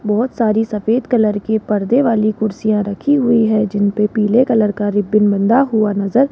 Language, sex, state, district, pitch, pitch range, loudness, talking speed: Hindi, female, Rajasthan, Jaipur, 215 Hz, 210-230 Hz, -15 LUFS, 190 wpm